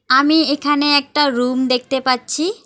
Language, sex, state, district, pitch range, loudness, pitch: Bengali, female, West Bengal, Alipurduar, 255-295 Hz, -16 LUFS, 285 Hz